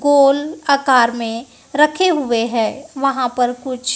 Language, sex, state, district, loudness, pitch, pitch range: Hindi, female, Maharashtra, Gondia, -16 LUFS, 265 Hz, 245-285 Hz